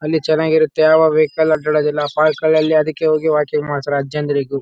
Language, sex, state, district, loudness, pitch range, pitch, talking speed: Kannada, male, Karnataka, Bellary, -15 LUFS, 150-155 Hz, 155 Hz, 145 wpm